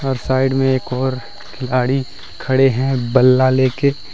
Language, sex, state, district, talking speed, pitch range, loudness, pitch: Hindi, male, Jharkhand, Deoghar, 160 wpm, 130-135 Hz, -16 LUFS, 130 Hz